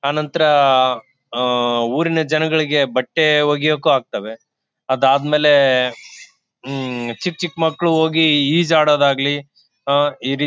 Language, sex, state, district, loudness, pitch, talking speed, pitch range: Kannada, male, Karnataka, Bellary, -16 LUFS, 145 Hz, 105 wpm, 130-155 Hz